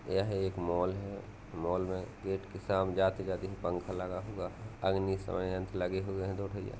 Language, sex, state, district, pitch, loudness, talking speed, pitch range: Hindi, male, Uttar Pradesh, Hamirpur, 95 Hz, -35 LUFS, 205 wpm, 90-95 Hz